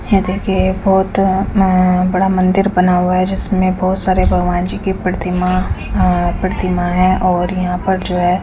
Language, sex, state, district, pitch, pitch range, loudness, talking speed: Hindi, female, Chandigarh, Chandigarh, 185 Hz, 180-190 Hz, -15 LUFS, 155 wpm